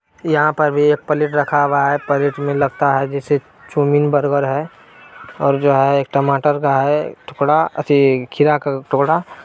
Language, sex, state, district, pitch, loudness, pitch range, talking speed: Maithili, male, Bihar, Purnia, 145 Hz, -16 LUFS, 140-150 Hz, 170 wpm